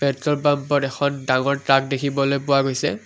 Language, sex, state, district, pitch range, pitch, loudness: Assamese, male, Assam, Kamrup Metropolitan, 135-140 Hz, 140 Hz, -20 LUFS